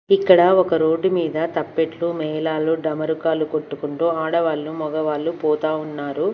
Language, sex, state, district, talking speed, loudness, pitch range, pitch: Telugu, female, Andhra Pradesh, Manyam, 115 wpm, -20 LUFS, 155-165 Hz, 160 Hz